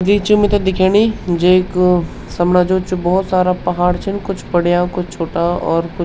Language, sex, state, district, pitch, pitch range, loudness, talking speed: Garhwali, male, Uttarakhand, Tehri Garhwal, 180 Hz, 175-190 Hz, -15 LUFS, 190 wpm